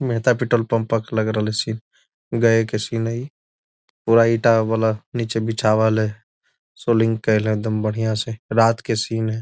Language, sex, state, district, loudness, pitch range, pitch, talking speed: Magahi, male, Bihar, Gaya, -20 LUFS, 110-115 Hz, 115 Hz, 165 wpm